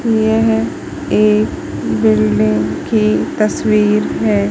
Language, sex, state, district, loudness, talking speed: Hindi, female, Madhya Pradesh, Katni, -14 LUFS, 80 wpm